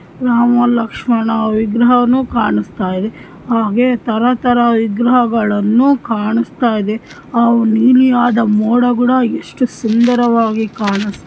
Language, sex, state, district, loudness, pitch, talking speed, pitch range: Kannada, female, Karnataka, Shimoga, -13 LUFS, 235 Hz, 85 wpm, 220-245 Hz